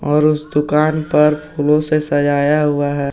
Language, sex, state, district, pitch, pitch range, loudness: Hindi, male, Jharkhand, Garhwa, 150 Hz, 145-155 Hz, -15 LUFS